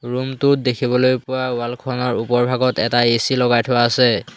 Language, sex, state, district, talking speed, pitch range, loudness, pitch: Assamese, male, Assam, Hailakandi, 150 wpm, 120-130 Hz, -18 LUFS, 125 Hz